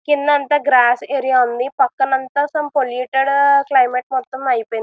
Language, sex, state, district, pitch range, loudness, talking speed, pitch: Telugu, female, Andhra Pradesh, Visakhapatnam, 250-285 Hz, -16 LUFS, 135 wpm, 265 Hz